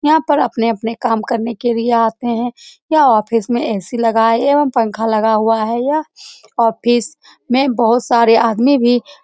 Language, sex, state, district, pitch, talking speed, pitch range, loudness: Hindi, female, Bihar, Saran, 235 Hz, 175 wpm, 225-265 Hz, -15 LUFS